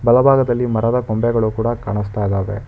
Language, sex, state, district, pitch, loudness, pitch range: Kannada, male, Karnataka, Bangalore, 115 Hz, -17 LUFS, 105-120 Hz